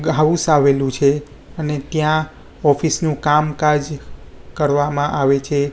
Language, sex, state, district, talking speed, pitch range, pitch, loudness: Gujarati, male, Gujarat, Gandhinagar, 115 wpm, 145-155 Hz, 150 Hz, -17 LUFS